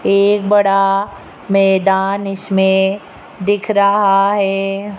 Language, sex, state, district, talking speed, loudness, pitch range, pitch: Hindi, female, Rajasthan, Jaipur, 85 wpm, -14 LUFS, 195-200 Hz, 195 Hz